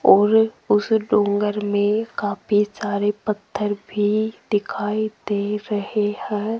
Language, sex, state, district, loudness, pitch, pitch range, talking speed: Hindi, female, Rajasthan, Jaipur, -21 LUFS, 210 Hz, 205-215 Hz, 110 wpm